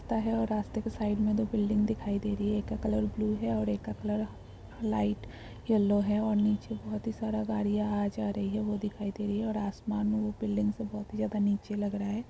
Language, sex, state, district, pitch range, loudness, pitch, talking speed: Hindi, female, Bihar, Darbhanga, 200-215 Hz, -31 LUFS, 210 Hz, 265 wpm